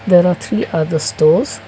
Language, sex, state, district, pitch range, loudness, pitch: English, male, Karnataka, Bangalore, 165-220 Hz, -15 LUFS, 180 Hz